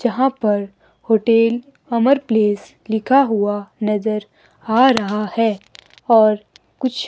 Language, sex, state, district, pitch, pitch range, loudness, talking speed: Hindi, female, Himachal Pradesh, Shimla, 220 Hz, 210-245 Hz, -18 LUFS, 110 wpm